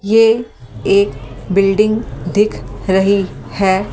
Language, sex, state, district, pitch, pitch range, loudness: Hindi, female, Delhi, New Delhi, 195 Hz, 135-210 Hz, -15 LUFS